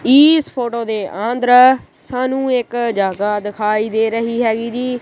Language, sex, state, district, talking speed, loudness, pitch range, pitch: Punjabi, female, Punjab, Kapurthala, 145 wpm, -16 LUFS, 220-250 Hz, 235 Hz